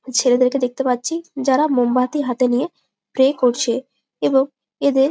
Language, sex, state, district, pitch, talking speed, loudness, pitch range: Bengali, female, West Bengal, Malda, 260 Hz, 130 wpm, -19 LUFS, 250-275 Hz